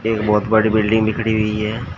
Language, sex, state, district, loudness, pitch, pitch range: Hindi, male, Uttar Pradesh, Shamli, -17 LUFS, 110 Hz, 105-110 Hz